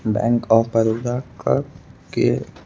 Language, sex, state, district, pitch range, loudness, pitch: Hindi, male, Madhya Pradesh, Bhopal, 110-120 Hz, -20 LUFS, 115 Hz